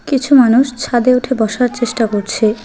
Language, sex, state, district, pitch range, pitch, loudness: Bengali, female, West Bengal, Alipurduar, 225-255 Hz, 245 Hz, -13 LUFS